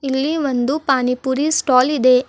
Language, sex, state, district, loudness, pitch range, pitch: Kannada, female, Karnataka, Bidar, -17 LUFS, 255-290 Hz, 265 Hz